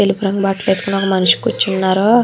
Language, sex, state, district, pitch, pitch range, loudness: Telugu, female, Andhra Pradesh, Chittoor, 195 Hz, 190-200 Hz, -15 LUFS